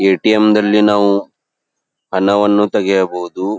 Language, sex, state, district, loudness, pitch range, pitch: Kannada, male, Karnataka, Belgaum, -13 LUFS, 95-105 Hz, 100 Hz